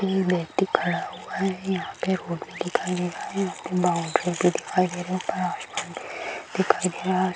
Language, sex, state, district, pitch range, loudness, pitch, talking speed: Hindi, female, Bihar, Gopalganj, 180-190 Hz, -26 LUFS, 185 Hz, 230 wpm